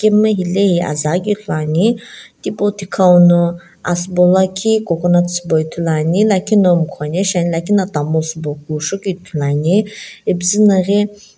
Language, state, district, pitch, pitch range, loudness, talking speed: Sumi, Nagaland, Dimapur, 180 Hz, 165-200 Hz, -15 LUFS, 150 wpm